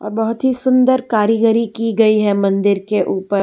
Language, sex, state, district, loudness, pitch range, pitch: Hindi, female, Gujarat, Valsad, -15 LUFS, 205-230 Hz, 225 Hz